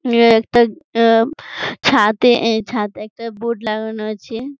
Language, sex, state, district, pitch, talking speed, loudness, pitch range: Bengali, female, West Bengal, Jhargram, 230 Hz, 105 wpm, -16 LUFS, 220-240 Hz